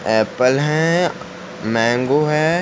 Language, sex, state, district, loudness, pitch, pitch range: Hindi, male, Uttar Pradesh, Ghazipur, -17 LUFS, 145 Hz, 115-155 Hz